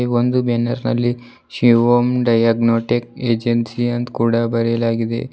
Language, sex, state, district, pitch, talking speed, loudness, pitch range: Kannada, male, Karnataka, Bidar, 120 Hz, 100 wpm, -17 LUFS, 115-120 Hz